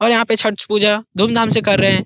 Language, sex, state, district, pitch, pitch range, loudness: Hindi, male, Bihar, Jahanabad, 210 Hz, 205-225 Hz, -15 LUFS